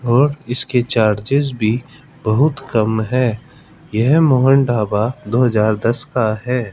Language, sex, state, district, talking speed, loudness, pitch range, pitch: Hindi, male, Rajasthan, Jaipur, 135 wpm, -16 LUFS, 110-135 Hz, 125 Hz